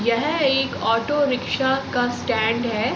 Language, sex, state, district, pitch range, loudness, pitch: Hindi, female, Uttar Pradesh, Hamirpur, 230-270 Hz, -21 LUFS, 245 Hz